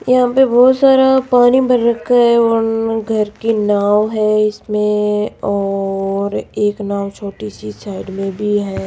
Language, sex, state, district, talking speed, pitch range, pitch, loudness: Hindi, female, Rajasthan, Jaipur, 155 wpm, 200-235 Hz, 210 Hz, -14 LUFS